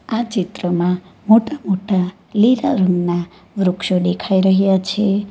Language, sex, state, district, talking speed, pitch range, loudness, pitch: Gujarati, female, Gujarat, Valsad, 115 wpm, 180-205 Hz, -17 LUFS, 190 Hz